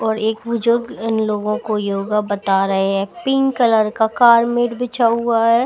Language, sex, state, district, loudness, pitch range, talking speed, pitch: Hindi, female, Bihar, Patna, -17 LUFS, 210-235 Hz, 190 wpm, 225 Hz